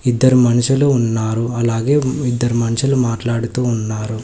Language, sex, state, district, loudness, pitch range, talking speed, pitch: Telugu, male, Telangana, Hyderabad, -16 LUFS, 115-130 Hz, 115 wpm, 120 Hz